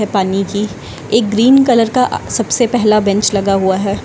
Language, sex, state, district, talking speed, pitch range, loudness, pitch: Hindi, female, Uttar Pradesh, Lucknow, 190 wpm, 195-230 Hz, -13 LUFS, 210 Hz